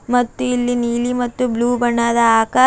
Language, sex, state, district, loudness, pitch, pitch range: Kannada, female, Karnataka, Bidar, -17 LUFS, 245 Hz, 235-250 Hz